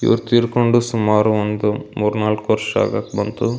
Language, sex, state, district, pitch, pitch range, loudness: Kannada, male, Karnataka, Belgaum, 110 Hz, 105-120 Hz, -18 LUFS